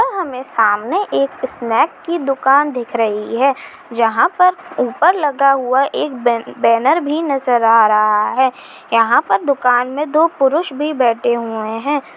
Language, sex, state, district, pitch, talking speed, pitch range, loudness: Chhattisgarhi, female, Chhattisgarh, Kabirdham, 265 Hz, 160 wpm, 230-295 Hz, -15 LUFS